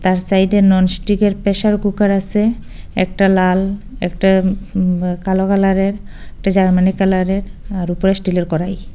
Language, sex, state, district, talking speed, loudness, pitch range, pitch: Bengali, female, Assam, Hailakandi, 125 wpm, -16 LUFS, 185-200 Hz, 195 Hz